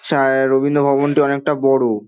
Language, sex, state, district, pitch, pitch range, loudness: Bengali, male, West Bengal, Dakshin Dinajpur, 140 Hz, 135-145 Hz, -16 LUFS